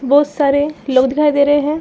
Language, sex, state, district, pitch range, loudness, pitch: Hindi, female, Bihar, Saran, 280-295 Hz, -14 LUFS, 290 Hz